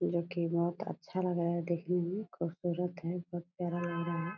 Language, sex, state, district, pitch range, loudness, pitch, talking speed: Hindi, female, Bihar, Purnia, 170-180 Hz, -35 LUFS, 175 Hz, 220 wpm